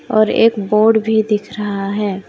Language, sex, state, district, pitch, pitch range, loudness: Hindi, female, Jharkhand, Deoghar, 210 Hz, 205-220 Hz, -15 LUFS